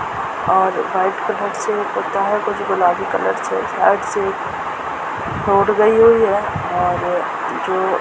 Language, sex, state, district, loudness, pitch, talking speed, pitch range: Hindi, female, Bihar, Muzaffarpur, -17 LUFS, 215 Hz, 95 wpm, 200-225 Hz